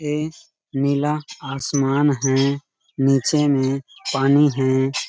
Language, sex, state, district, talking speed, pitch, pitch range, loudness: Hindi, male, Chhattisgarh, Balrampur, 105 wpm, 140 Hz, 135-150 Hz, -20 LUFS